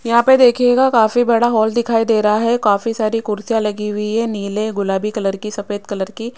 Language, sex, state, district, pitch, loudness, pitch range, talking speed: Hindi, female, Rajasthan, Jaipur, 220 Hz, -16 LUFS, 210-235 Hz, 215 wpm